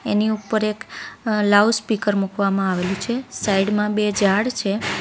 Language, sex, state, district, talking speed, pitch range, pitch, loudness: Gujarati, female, Gujarat, Valsad, 155 wpm, 200-220 Hz, 210 Hz, -20 LUFS